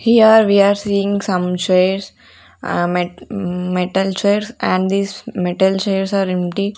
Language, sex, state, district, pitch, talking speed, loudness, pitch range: English, female, Punjab, Fazilka, 195 Hz, 140 wpm, -16 LUFS, 180-200 Hz